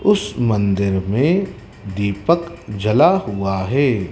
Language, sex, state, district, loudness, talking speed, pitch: Hindi, male, Madhya Pradesh, Dhar, -18 LUFS, 100 wpm, 105 Hz